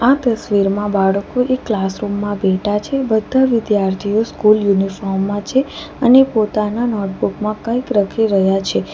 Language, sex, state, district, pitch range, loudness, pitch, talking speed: Gujarati, female, Gujarat, Valsad, 200-235 Hz, -16 LUFS, 210 Hz, 145 wpm